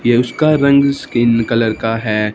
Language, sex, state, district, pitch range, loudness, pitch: Hindi, male, Punjab, Fazilka, 115-140 Hz, -14 LUFS, 120 Hz